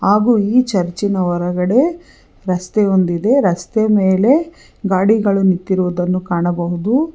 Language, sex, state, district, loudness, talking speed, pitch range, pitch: Kannada, female, Karnataka, Bangalore, -15 LUFS, 100 wpm, 180-220 Hz, 190 Hz